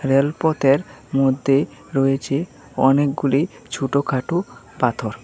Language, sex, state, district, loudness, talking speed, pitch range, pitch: Bengali, male, Tripura, West Tripura, -20 LUFS, 70 wpm, 135-145 Hz, 135 Hz